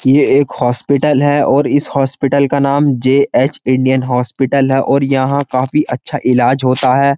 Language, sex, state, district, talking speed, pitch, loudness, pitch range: Hindi, male, Uttar Pradesh, Jyotiba Phule Nagar, 165 wpm, 135 Hz, -13 LUFS, 130-140 Hz